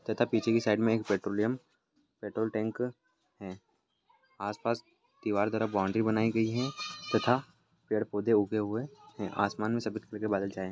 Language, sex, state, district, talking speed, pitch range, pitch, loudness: Hindi, male, Bihar, Sitamarhi, 185 wpm, 105-115 Hz, 110 Hz, -31 LUFS